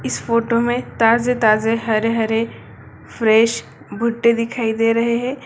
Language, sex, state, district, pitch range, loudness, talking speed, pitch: Hindi, female, Bihar, Sitamarhi, 225-235 Hz, -18 LUFS, 120 wpm, 230 Hz